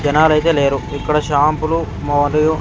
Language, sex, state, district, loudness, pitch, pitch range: Telugu, male, Andhra Pradesh, Sri Satya Sai, -16 LUFS, 150 Hz, 145-155 Hz